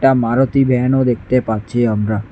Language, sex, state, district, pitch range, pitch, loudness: Bengali, male, Tripura, West Tripura, 110-130 Hz, 125 Hz, -16 LUFS